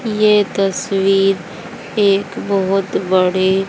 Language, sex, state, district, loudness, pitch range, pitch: Hindi, female, Haryana, Jhajjar, -16 LUFS, 190-200 Hz, 195 Hz